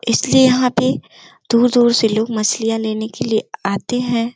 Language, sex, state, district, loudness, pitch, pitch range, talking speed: Hindi, female, Uttar Pradesh, Gorakhpur, -16 LUFS, 230 Hz, 220-245 Hz, 165 wpm